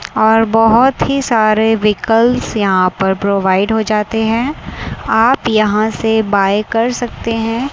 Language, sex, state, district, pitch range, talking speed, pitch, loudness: Hindi, female, Chandigarh, Chandigarh, 210-230 Hz, 140 wpm, 220 Hz, -13 LUFS